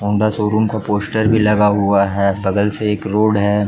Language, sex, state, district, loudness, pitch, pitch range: Hindi, male, Jharkhand, Jamtara, -16 LUFS, 105 Hz, 100-110 Hz